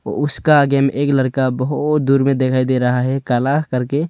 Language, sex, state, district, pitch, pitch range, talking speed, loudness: Hindi, male, Arunachal Pradesh, Longding, 135 Hz, 130-145 Hz, 205 wpm, -16 LUFS